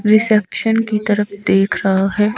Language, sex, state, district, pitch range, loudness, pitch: Hindi, female, Himachal Pradesh, Shimla, 200-215 Hz, -16 LUFS, 210 Hz